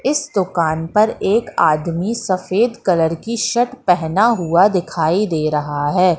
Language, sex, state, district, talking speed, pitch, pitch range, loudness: Hindi, female, Madhya Pradesh, Katni, 145 wpm, 185 Hz, 165-225 Hz, -17 LUFS